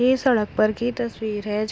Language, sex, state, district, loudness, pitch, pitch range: Hindi, female, Uttar Pradesh, Gorakhpur, -23 LUFS, 220 Hz, 215-245 Hz